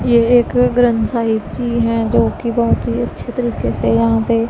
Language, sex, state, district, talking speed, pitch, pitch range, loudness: Hindi, female, Punjab, Pathankot, 185 wpm, 230 Hz, 220-240 Hz, -16 LUFS